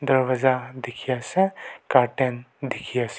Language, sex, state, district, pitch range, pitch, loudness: Nagamese, male, Nagaland, Kohima, 125-135 Hz, 130 Hz, -24 LUFS